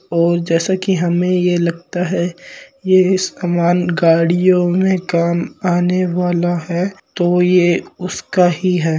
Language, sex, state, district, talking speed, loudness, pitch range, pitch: Marwari, male, Rajasthan, Nagaur, 135 wpm, -16 LUFS, 175-185 Hz, 175 Hz